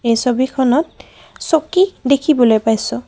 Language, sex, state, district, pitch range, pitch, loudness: Assamese, female, Assam, Kamrup Metropolitan, 230-305 Hz, 260 Hz, -15 LUFS